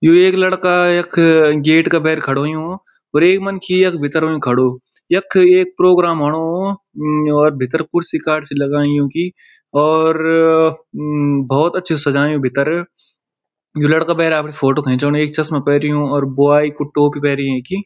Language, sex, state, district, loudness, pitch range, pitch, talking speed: Garhwali, male, Uttarakhand, Uttarkashi, -15 LUFS, 145-175 Hz, 155 Hz, 160 wpm